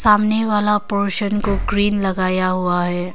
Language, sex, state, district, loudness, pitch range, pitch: Hindi, female, Arunachal Pradesh, Longding, -18 LUFS, 185-210 Hz, 200 Hz